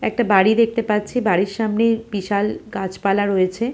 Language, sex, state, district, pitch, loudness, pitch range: Bengali, female, West Bengal, Purulia, 210 Hz, -19 LUFS, 195-225 Hz